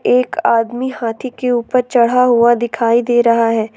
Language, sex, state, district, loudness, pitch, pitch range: Hindi, female, Jharkhand, Ranchi, -14 LUFS, 240 Hz, 230-250 Hz